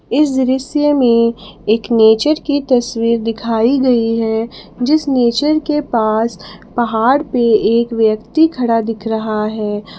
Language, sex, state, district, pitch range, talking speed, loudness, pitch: Hindi, female, Jharkhand, Palamu, 225-265 Hz, 130 wpm, -14 LUFS, 235 Hz